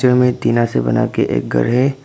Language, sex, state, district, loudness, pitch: Hindi, male, Arunachal Pradesh, Papum Pare, -16 LUFS, 120 Hz